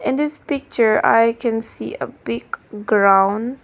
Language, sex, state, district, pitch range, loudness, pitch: English, female, Nagaland, Dimapur, 205-250 Hz, -18 LUFS, 225 Hz